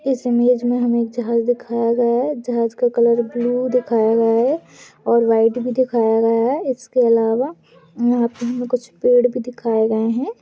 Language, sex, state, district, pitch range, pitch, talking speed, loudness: Hindi, female, Goa, North and South Goa, 235-250 Hz, 240 Hz, 180 wpm, -18 LUFS